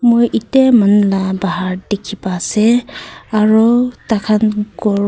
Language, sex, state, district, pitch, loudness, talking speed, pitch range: Nagamese, female, Nagaland, Kohima, 215 Hz, -14 LUFS, 140 wpm, 200-235 Hz